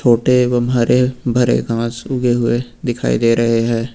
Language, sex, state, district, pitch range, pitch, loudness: Hindi, male, Uttar Pradesh, Lucknow, 115-125 Hz, 120 Hz, -16 LUFS